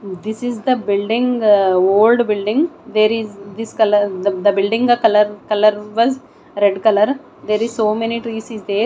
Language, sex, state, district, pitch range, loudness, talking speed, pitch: English, female, Odisha, Nuapada, 205-235 Hz, -16 LUFS, 170 wpm, 215 Hz